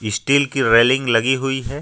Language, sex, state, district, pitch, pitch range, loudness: Hindi, male, Jharkhand, Ranchi, 130 Hz, 115-135 Hz, -16 LUFS